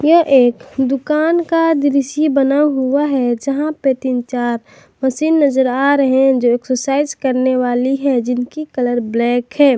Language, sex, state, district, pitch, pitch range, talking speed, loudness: Hindi, female, Jharkhand, Garhwa, 270 Hz, 250-290 Hz, 160 wpm, -15 LUFS